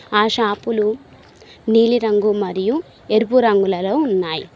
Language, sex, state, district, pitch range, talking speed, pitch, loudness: Telugu, female, Telangana, Mahabubabad, 205-230 Hz, 90 wpm, 215 Hz, -17 LUFS